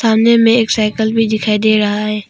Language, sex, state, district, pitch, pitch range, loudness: Hindi, female, Arunachal Pradesh, Papum Pare, 220 Hz, 210-225 Hz, -13 LUFS